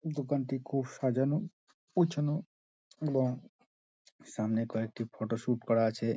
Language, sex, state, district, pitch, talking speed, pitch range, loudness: Bengali, male, West Bengal, Dakshin Dinajpur, 130 Hz, 115 wpm, 115-150 Hz, -33 LUFS